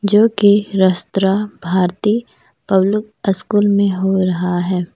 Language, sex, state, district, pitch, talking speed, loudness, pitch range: Hindi, female, Jharkhand, Deoghar, 195 Hz, 120 wpm, -16 LUFS, 185-205 Hz